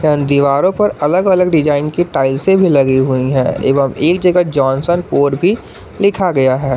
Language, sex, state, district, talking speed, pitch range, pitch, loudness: Hindi, male, Jharkhand, Garhwa, 195 wpm, 135-180 Hz, 145 Hz, -13 LUFS